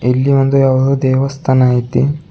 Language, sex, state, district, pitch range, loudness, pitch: Kannada, male, Karnataka, Bidar, 130-135 Hz, -13 LUFS, 135 Hz